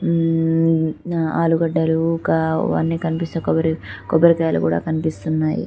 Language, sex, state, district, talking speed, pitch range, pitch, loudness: Telugu, female, Telangana, Karimnagar, 105 wpm, 160-165 Hz, 160 Hz, -19 LUFS